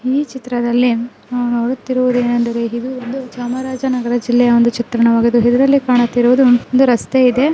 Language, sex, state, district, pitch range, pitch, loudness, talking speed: Kannada, female, Karnataka, Chamarajanagar, 240-255 Hz, 245 Hz, -15 LUFS, 125 wpm